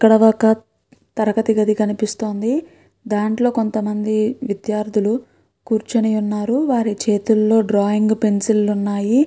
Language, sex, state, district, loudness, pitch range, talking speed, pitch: Telugu, female, Andhra Pradesh, Guntur, -18 LUFS, 210-225 Hz, 105 wpm, 215 Hz